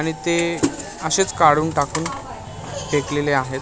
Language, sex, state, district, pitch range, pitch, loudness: Marathi, male, Maharashtra, Mumbai Suburban, 145-165 Hz, 155 Hz, -20 LUFS